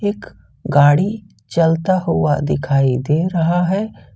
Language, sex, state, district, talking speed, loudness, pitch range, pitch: Hindi, male, Jharkhand, Ranchi, 115 wpm, -17 LUFS, 145-185 Hz, 165 Hz